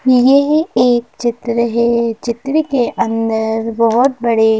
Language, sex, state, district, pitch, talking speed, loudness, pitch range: Hindi, female, Madhya Pradesh, Bhopal, 235 Hz, 130 wpm, -14 LUFS, 230-255 Hz